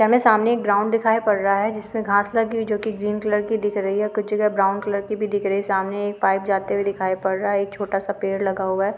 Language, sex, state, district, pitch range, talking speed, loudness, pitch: Hindi, female, Rajasthan, Nagaur, 195-215 Hz, 305 wpm, -21 LUFS, 205 Hz